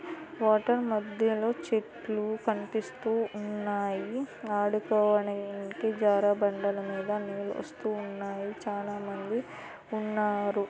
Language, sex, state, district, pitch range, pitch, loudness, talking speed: Telugu, female, Andhra Pradesh, Anantapur, 200-220 Hz, 210 Hz, -31 LUFS, 75 wpm